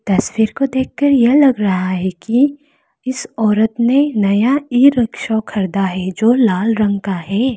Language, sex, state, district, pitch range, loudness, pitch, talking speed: Hindi, female, Arunachal Pradesh, Lower Dibang Valley, 200-260 Hz, -15 LUFS, 225 Hz, 160 wpm